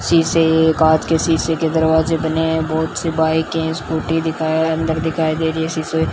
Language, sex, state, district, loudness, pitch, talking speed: Hindi, female, Rajasthan, Bikaner, -17 LUFS, 160 Hz, 215 wpm